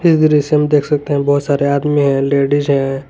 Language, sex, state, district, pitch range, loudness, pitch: Hindi, male, Jharkhand, Garhwa, 140-150 Hz, -14 LUFS, 145 Hz